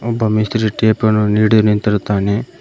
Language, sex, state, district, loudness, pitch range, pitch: Kannada, male, Karnataka, Koppal, -15 LUFS, 105-110 Hz, 110 Hz